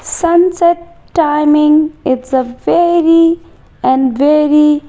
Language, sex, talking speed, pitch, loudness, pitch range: English, female, 100 wpm, 300 Hz, -11 LUFS, 295-340 Hz